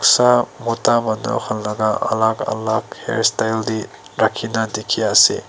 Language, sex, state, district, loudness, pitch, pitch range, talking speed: Nagamese, male, Nagaland, Dimapur, -18 LUFS, 110 Hz, 110-115 Hz, 155 wpm